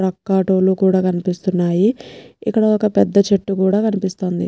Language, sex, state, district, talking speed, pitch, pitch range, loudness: Telugu, female, Telangana, Nalgonda, 120 wpm, 190 Hz, 185-205 Hz, -17 LUFS